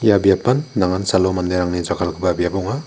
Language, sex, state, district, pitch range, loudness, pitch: Garo, male, Meghalaya, West Garo Hills, 90-105 Hz, -18 LUFS, 95 Hz